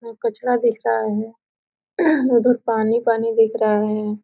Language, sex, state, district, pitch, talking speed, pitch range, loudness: Hindi, female, Bihar, Gopalganj, 230 Hz, 140 wpm, 215-245 Hz, -19 LUFS